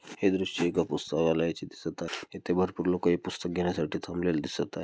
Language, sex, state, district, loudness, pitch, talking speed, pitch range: Marathi, male, Maharashtra, Dhule, -30 LUFS, 90 Hz, 185 wpm, 85-90 Hz